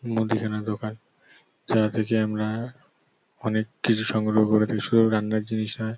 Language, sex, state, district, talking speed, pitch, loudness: Bengali, male, West Bengal, North 24 Parganas, 140 wpm, 110 Hz, -25 LUFS